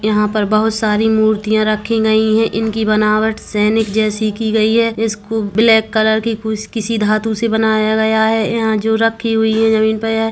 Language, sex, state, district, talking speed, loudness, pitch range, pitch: Hindi, male, Chhattisgarh, Kabirdham, 185 wpm, -15 LUFS, 215-225 Hz, 220 Hz